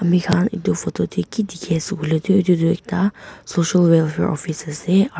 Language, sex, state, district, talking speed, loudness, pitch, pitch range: Nagamese, female, Nagaland, Dimapur, 210 wpm, -19 LUFS, 175 Hz, 160-190 Hz